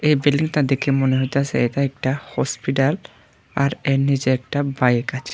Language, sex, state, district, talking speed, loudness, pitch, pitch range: Bengali, male, Tripura, Unakoti, 155 wpm, -20 LUFS, 135 Hz, 130-140 Hz